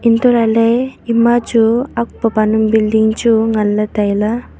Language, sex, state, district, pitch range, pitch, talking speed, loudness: Wancho, female, Arunachal Pradesh, Longding, 220-235 Hz, 225 Hz, 130 wpm, -14 LUFS